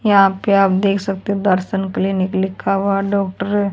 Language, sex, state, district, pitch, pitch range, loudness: Hindi, female, Haryana, Charkhi Dadri, 195 Hz, 190-200 Hz, -17 LUFS